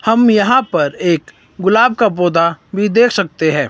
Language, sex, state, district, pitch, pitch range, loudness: Hindi, male, Himachal Pradesh, Shimla, 200 Hz, 165-225 Hz, -13 LUFS